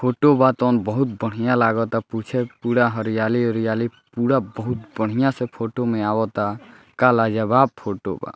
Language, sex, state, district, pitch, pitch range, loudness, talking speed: Bhojpuri, male, Bihar, Muzaffarpur, 115 Hz, 110-125 Hz, -21 LUFS, 150 wpm